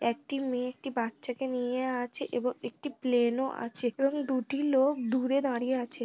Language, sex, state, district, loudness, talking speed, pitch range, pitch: Bengali, female, West Bengal, North 24 Parganas, -31 LUFS, 170 wpm, 245-270 Hz, 255 Hz